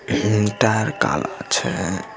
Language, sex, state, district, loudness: Maithili, male, Bihar, Samastipur, -20 LUFS